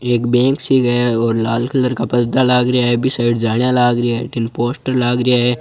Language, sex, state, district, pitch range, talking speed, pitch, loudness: Marwari, male, Rajasthan, Churu, 120-125 Hz, 265 wpm, 120 Hz, -15 LUFS